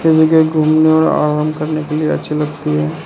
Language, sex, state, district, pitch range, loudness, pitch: Hindi, male, Arunachal Pradesh, Lower Dibang Valley, 150-160 Hz, -14 LUFS, 155 Hz